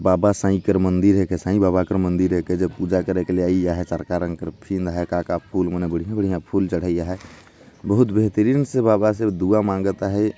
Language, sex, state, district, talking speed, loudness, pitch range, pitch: Chhattisgarhi, male, Chhattisgarh, Jashpur, 200 wpm, -21 LUFS, 90-100 Hz, 95 Hz